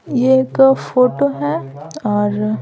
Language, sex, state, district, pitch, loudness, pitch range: Hindi, female, Bihar, Patna, 210 Hz, -15 LUFS, 155-255 Hz